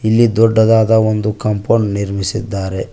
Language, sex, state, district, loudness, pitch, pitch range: Kannada, male, Karnataka, Koppal, -14 LUFS, 110 Hz, 100-110 Hz